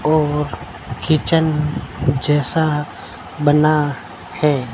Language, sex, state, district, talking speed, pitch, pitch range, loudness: Hindi, male, Rajasthan, Bikaner, 65 wpm, 150 Hz, 145-155 Hz, -18 LUFS